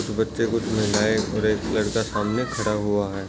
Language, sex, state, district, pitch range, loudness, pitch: Hindi, male, Bihar, Jahanabad, 105-110 Hz, -23 LUFS, 110 Hz